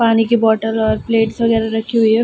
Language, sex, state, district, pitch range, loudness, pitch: Hindi, female, Bihar, Gaya, 220-230 Hz, -15 LUFS, 225 Hz